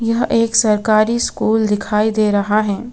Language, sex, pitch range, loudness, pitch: Hindi, female, 210-230 Hz, -15 LUFS, 215 Hz